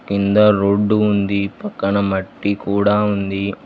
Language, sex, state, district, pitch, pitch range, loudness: Telugu, male, Telangana, Hyderabad, 100 Hz, 100-105 Hz, -17 LUFS